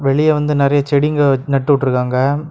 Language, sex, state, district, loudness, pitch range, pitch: Tamil, male, Tamil Nadu, Kanyakumari, -15 LUFS, 135-145 Hz, 140 Hz